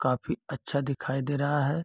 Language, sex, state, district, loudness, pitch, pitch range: Hindi, male, Bihar, East Champaran, -30 LUFS, 140 Hz, 135-145 Hz